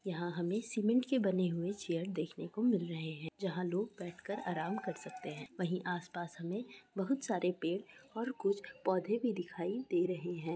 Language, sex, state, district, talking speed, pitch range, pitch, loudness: Hindi, female, Bihar, Darbhanga, 200 wpm, 175-220 Hz, 185 Hz, -37 LUFS